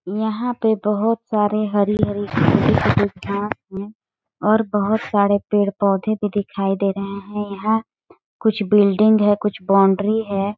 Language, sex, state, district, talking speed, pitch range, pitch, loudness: Hindi, female, Chhattisgarh, Balrampur, 140 wpm, 200-215 Hz, 205 Hz, -19 LUFS